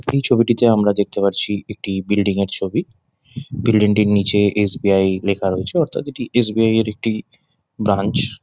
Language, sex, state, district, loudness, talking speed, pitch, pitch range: Bengali, male, West Bengal, Jhargram, -18 LUFS, 185 wpm, 105 Hz, 100-120 Hz